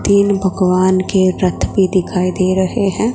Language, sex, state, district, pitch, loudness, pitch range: Hindi, female, Gujarat, Gandhinagar, 190 Hz, -15 LUFS, 185-195 Hz